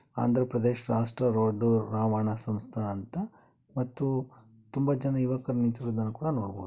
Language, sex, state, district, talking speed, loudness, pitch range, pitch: Kannada, male, Karnataka, Bellary, 115 wpm, -30 LUFS, 110-130 Hz, 120 Hz